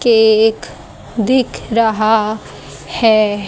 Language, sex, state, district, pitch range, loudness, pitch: Hindi, female, Haryana, Jhajjar, 215-230 Hz, -14 LUFS, 220 Hz